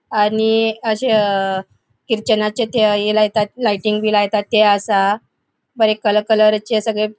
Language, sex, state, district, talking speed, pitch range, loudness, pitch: Konkani, female, Goa, North and South Goa, 140 wpm, 210-220 Hz, -16 LUFS, 215 Hz